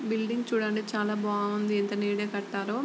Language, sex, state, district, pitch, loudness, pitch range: Telugu, female, Andhra Pradesh, Guntur, 210 Hz, -29 LUFS, 205-220 Hz